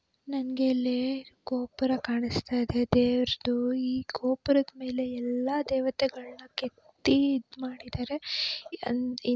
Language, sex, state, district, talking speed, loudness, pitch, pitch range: Kannada, female, Karnataka, Belgaum, 95 wpm, -29 LUFS, 255 Hz, 250-265 Hz